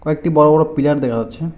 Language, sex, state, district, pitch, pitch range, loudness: Bengali, male, West Bengal, Alipurduar, 150 Hz, 140-155 Hz, -15 LUFS